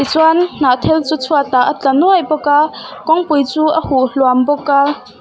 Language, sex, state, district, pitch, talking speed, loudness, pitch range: Mizo, female, Mizoram, Aizawl, 290 Hz, 205 wpm, -13 LUFS, 270-315 Hz